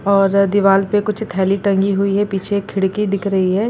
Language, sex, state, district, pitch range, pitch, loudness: Hindi, female, Bihar, Gopalganj, 195-205 Hz, 200 Hz, -16 LUFS